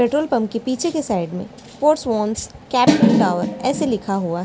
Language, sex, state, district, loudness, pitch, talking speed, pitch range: Hindi, female, Delhi, New Delhi, -19 LUFS, 235 Hz, 175 wpm, 210-275 Hz